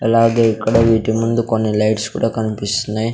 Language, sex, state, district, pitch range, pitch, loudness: Telugu, male, Andhra Pradesh, Sri Satya Sai, 110-115 Hz, 110 Hz, -16 LUFS